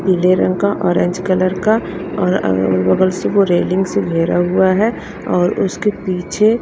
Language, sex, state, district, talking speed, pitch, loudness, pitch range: Hindi, female, Haryana, Rohtak, 170 wpm, 185 Hz, -15 LUFS, 175-200 Hz